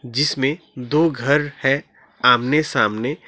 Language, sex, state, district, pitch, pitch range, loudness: Hindi, male, West Bengal, Alipurduar, 140 Hz, 125-150 Hz, -19 LUFS